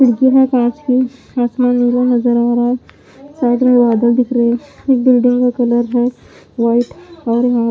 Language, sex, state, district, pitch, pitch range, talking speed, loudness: Hindi, female, Punjab, Pathankot, 245 Hz, 240-255 Hz, 185 wpm, -14 LUFS